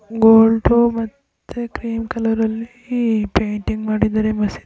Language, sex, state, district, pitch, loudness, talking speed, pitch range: Kannada, female, Karnataka, Raichur, 225 Hz, -17 LUFS, 105 wpm, 215-235 Hz